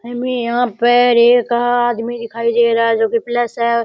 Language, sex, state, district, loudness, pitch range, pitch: Rajasthani, male, Rajasthan, Nagaur, -15 LUFS, 235-240 Hz, 235 Hz